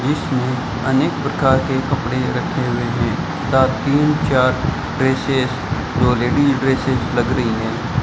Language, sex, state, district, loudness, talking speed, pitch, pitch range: Hindi, male, Rajasthan, Bikaner, -18 LUFS, 135 wpm, 130 Hz, 130-135 Hz